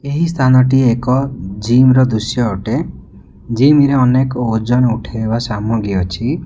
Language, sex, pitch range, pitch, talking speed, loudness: Odia, male, 115-130 Hz, 125 Hz, 130 wpm, -14 LUFS